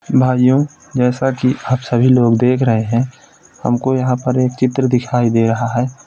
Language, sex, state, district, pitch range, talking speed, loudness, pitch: Hindi, male, Uttar Pradesh, Etah, 120-130 Hz, 180 wpm, -15 LUFS, 125 Hz